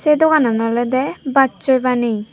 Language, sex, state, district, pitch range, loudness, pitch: Chakma, female, Tripura, Dhalai, 240-290 Hz, -16 LUFS, 260 Hz